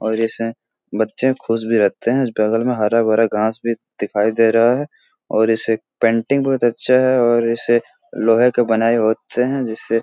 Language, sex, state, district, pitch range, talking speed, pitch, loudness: Hindi, male, Bihar, Jahanabad, 110-120 Hz, 185 wpm, 115 Hz, -17 LUFS